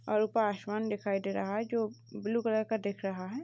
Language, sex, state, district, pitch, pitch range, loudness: Hindi, female, Uttar Pradesh, Jalaun, 210 Hz, 195-220 Hz, -33 LUFS